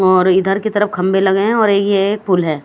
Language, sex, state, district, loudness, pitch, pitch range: Hindi, female, Himachal Pradesh, Shimla, -14 LUFS, 195 Hz, 185-205 Hz